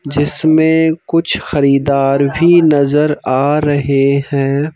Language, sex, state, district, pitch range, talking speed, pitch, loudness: Hindi, male, Madhya Pradesh, Bhopal, 140-155 Hz, 100 wpm, 145 Hz, -12 LUFS